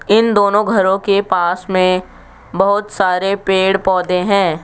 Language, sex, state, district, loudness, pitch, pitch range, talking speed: Hindi, male, Rajasthan, Jaipur, -14 LUFS, 190 Hz, 185-200 Hz, 140 wpm